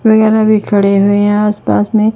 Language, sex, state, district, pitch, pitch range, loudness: Hindi, female, Chandigarh, Chandigarh, 210 Hz, 200-215 Hz, -11 LUFS